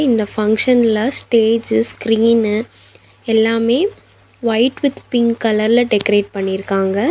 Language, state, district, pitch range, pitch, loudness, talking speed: Tamil, Tamil Nadu, Nilgiris, 210-235 Hz, 225 Hz, -15 LUFS, 95 wpm